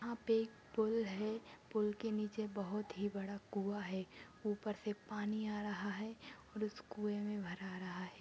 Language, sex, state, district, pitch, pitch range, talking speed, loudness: Hindi, female, Maharashtra, Sindhudurg, 210 Hz, 200-215 Hz, 185 wpm, -42 LUFS